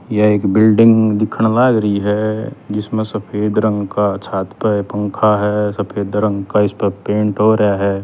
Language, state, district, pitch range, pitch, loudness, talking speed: Haryanvi, Haryana, Rohtak, 105-110 Hz, 105 Hz, -15 LUFS, 165 wpm